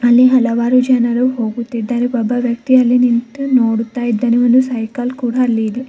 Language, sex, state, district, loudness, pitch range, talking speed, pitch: Kannada, female, Karnataka, Bidar, -14 LUFS, 235-250 Hz, 155 wpm, 245 Hz